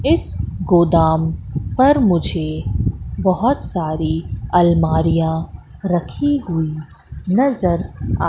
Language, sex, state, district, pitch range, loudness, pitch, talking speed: Hindi, female, Madhya Pradesh, Katni, 155-180 Hz, -18 LUFS, 165 Hz, 80 wpm